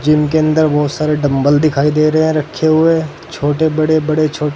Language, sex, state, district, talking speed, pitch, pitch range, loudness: Hindi, male, Uttar Pradesh, Saharanpur, 210 wpm, 155 Hz, 150-155 Hz, -13 LUFS